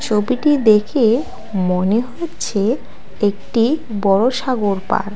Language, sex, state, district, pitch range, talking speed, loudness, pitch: Bengali, female, West Bengal, Alipurduar, 205-255 Hz, 95 wpm, -17 LUFS, 225 Hz